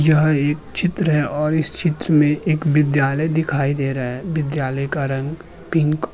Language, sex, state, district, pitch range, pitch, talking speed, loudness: Hindi, male, Uttar Pradesh, Muzaffarnagar, 140-160 Hz, 150 Hz, 185 wpm, -18 LUFS